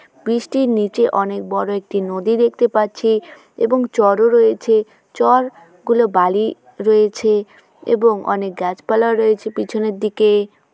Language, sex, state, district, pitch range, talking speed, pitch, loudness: Bengali, female, West Bengal, Jhargram, 205-235 Hz, 125 wpm, 215 Hz, -17 LUFS